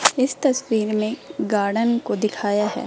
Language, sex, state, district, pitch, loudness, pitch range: Hindi, female, Rajasthan, Jaipur, 220 Hz, -22 LUFS, 210-250 Hz